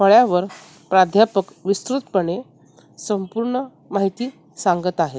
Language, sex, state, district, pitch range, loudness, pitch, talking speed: Marathi, female, Maharashtra, Mumbai Suburban, 175-220 Hz, -20 LUFS, 195 Hz, 90 wpm